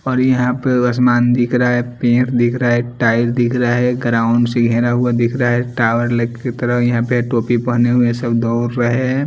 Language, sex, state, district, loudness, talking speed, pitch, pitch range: Hindi, male, Delhi, New Delhi, -15 LUFS, 225 wpm, 120 Hz, 120-125 Hz